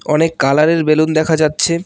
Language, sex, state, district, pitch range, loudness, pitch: Bengali, male, West Bengal, Cooch Behar, 155-165 Hz, -14 LUFS, 155 Hz